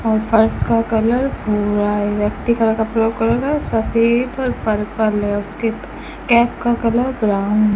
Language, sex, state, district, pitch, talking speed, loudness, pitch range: Hindi, female, Rajasthan, Bikaner, 225 Hz, 145 wpm, -17 LUFS, 210-235 Hz